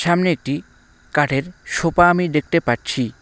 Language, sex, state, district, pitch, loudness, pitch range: Bengali, male, West Bengal, Alipurduar, 155 Hz, -19 LUFS, 135-175 Hz